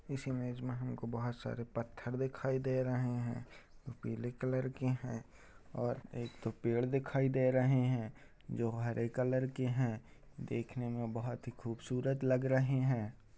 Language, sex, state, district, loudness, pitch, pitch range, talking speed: Hindi, male, Uttar Pradesh, Budaun, -37 LUFS, 125 Hz, 115-130 Hz, 170 wpm